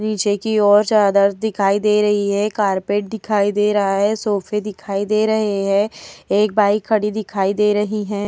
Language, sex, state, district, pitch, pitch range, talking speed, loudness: Hindi, female, Uttar Pradesh, Hamirpur, 210 Hz, 200-215 Hz, 180 wpm, -18 LUFS